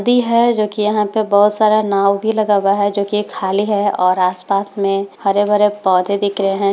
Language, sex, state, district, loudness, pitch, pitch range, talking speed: Hindi, female, Bihar, Bhagalpur, -15 LUFS, 205 Hz, 195-210 Hz, 230 wpm